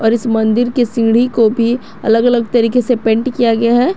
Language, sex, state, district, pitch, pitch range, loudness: Hindi, female, Jharkhand, Garhwa, 235 Hz, 225-245 Hz, -13 LUFS